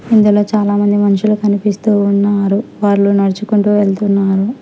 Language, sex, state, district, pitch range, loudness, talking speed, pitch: Telugu, female, Telangana, Hyderabad, 200-210 Hz, -13 LUFS, 105 wpm, 205 Hz